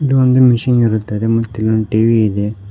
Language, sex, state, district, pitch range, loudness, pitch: Kannada, male, Karnataka, Koppal, 110-125 Hz, -14 LUFS, 115 Hz